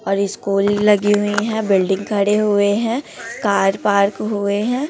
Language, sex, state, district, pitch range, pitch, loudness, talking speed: Hindi, female, Chhattisgarh, Raipur, 200-215 Hz, 205 Hz, -17 LUFS, 160 wpm